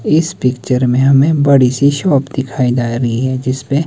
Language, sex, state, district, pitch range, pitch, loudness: Hindi, male, Himachal Pradesh, Shimla, 125-140 Hz, 135 Hz, -13 LUFS